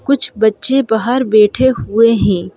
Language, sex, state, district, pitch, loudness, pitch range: Hindi, female, Madhya Pradesh, Bhopal, 230 Hz, -13 LUFS, 215-260 Hz